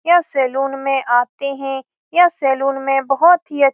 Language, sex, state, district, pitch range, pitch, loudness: Hindi, female, Bihar, Saran, 270-305 Hz, 275 Hz, -16 LUFS